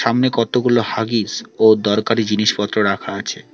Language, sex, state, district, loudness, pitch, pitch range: Bengali, male, West Bengal, Alipurduar, -17 LUFS, 115 Hz, 105-115 Hz